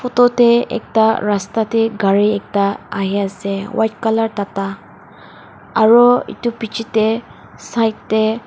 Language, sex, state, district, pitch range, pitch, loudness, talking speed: Nagamese, female, Nagaland, Dimapur, 200-225 Hz, 220 Hz, -16 LUFS, 125 wpm